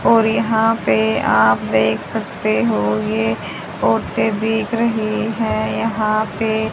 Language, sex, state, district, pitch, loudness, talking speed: Hindi, female, Haryana, Jhajjar, 215 Hz, -18 LUFS, 125 wpm